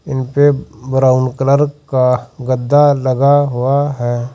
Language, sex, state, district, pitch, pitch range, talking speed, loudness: Hindi, male, Uttar Pradesh, Saharanpur, 135 Hz, 125-145 Hz, 110 wpm, -14 LUFS